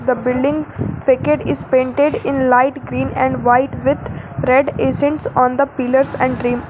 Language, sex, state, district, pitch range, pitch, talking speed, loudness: English, female, Jharkhand, Garhwa, 250-280 Hz, 265 Hz, 150 wpm, -16 LUFS